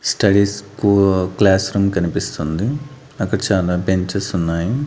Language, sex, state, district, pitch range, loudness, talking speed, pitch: Telugu, male, Andhra Pradesh, Annamaya, 90-105 Hz, -18 LUFS, 110 wpm, 100 Hz